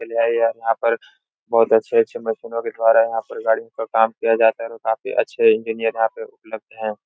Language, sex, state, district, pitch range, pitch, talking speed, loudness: Hindi, male, Uttar Pradesh, Etah, 110-115 Hz, 115 Hz, 205 wpm, -19 LUFS